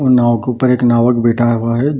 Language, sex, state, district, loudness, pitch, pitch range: Hindi, male, Bihar, Samastipur, -13 LUFS, 120 Hz, 120-125 Hz